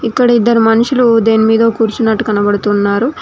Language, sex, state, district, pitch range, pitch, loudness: Telugu, female, Telangana, Mahabubabad, 215-235 Hz, 225 Hz, -11 LUFS